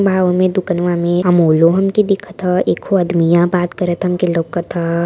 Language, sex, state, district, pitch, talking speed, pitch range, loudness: Hindi, female, Uttar Pradesh, Varanasi, 180 Hz, 180 wpm, 170-185 Hz, -15 LUFS